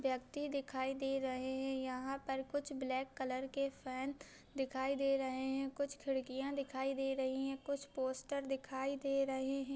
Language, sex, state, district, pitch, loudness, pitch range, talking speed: Hindi, female, Bihar, Saharsa, 270 Hz, -40 LUFS, 265-275 Hz, 170 wpm